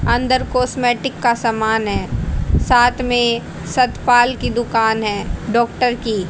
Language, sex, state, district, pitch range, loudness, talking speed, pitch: Hindi, female, Haryana, Charkhi Dadri, 225-245 Hz, -17 LUFS, 125 wpm, 240 Hz